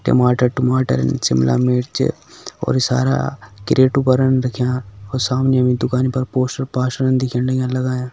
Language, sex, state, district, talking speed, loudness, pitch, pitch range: Hindi, male, Uttarakhand, Tehri Garhwal, 140 wpm, -18 LUFS, 130 Hz, 125-130 Hz